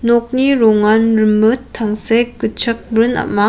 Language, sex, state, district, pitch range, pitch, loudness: Garo, female, Meghalaya, West Garo Hills, 215-235 Hz, 230 Hz, -14 LUFS